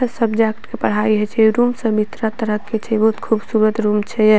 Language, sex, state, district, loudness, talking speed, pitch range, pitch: Maithili, female, Bihar, Purnia, -18 LUFS, 230 wpm, 215-225 Hz, 220 Hz